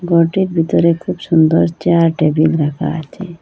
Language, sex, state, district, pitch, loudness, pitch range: Bengali, female, Assam, Hailakandi, 165 Hz, -14 LUFS, 160-170 Hz